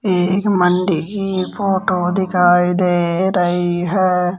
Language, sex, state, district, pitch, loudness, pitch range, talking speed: Hindi, male, Rajasthan, Jaipur, 180 Hz, -16 LUFS, 175-190 Hz, 110 wpm